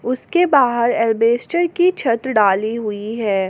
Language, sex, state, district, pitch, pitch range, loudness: Hindi, female, Jharkhand, Garhwa, 235 Hz, 220-265 Hz, -17 LUFS